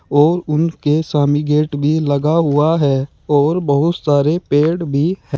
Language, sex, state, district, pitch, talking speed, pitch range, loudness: Hindi, male, Uttar Pradesh, Saharanpur, 150 Hz, 155 wpm, 145-160 Hz, -15 LUFS